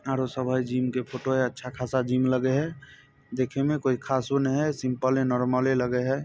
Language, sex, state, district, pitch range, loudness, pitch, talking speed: Maithili, male, Bihar, Samastipur, 125-135 Hz, -26 LUFS, 130 Hz, 210 wpm